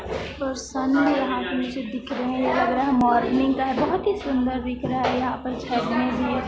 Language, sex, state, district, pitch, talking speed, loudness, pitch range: Hindi, female, Chhattisgarh, Sarguja, 260 Hz, 220 wpm, -23 LUFS, 250-270 Hz